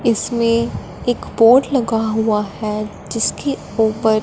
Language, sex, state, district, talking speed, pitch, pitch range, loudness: Hindi, female, Punjab, Fazilka, 115 wpm, 225 Hz, 220-235 Hz, -17 LUFS